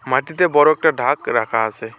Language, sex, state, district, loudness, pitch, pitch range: Bengali, male, West Bengal, Alipurduar, -17 LUFS, 145 Hz, 110-155 Hz